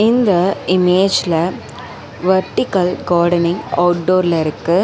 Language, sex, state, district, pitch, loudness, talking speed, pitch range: Tamil, female, Tamil Nadu, Chennai, 180 Hz, -15 LUFS, 75 wpm, 175-190 Hz